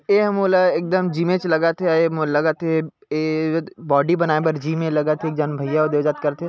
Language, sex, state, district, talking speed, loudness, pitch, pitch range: Chhattisgarhi, male, Chhattisgarh, Bilaspur, 260 wpm, -20 LUFS, 160 Hz, 155-170 Hz